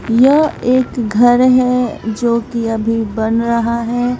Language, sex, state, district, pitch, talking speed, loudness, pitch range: Hindi, female, Bihar, West Champaran, 235 Hz, 145 wpm, -14 LUFS, 230-250 Hz